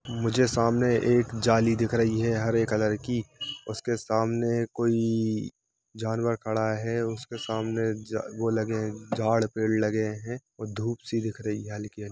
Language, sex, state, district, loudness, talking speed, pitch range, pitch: Hindi, male, Jharkhand, Jamtara, -27 LUFS, 170 wpm, 110-115 Hz, 115 Hz